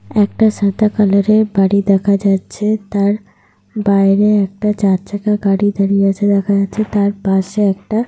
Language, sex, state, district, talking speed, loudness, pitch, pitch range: Bengali, female, Jharkhand, Sahebganj, 150 wpm, -14 LUFS, 200 Hz, 195-210 Hz